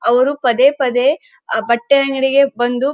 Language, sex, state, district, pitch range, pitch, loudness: Kannada, female, Karnataka, Dharwad, 245-280 Hz, 265 Hz, -15 LUFS